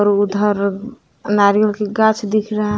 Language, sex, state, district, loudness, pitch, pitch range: Hindi, female, Jharkhand, Palamu, -16 LUFS, 210 Hz, 205-215 Hz